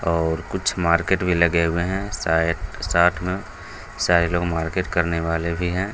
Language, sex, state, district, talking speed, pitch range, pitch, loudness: Hindi, male, Bihar, Gaya, 180 wpm, 85-90 Hz, 85 Hz, -21 LUFS